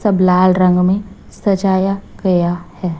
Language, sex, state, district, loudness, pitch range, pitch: Hindi, female, Chhattisgarh, Raipur, -15 LUFS, 180-195 Hz, 185 Hz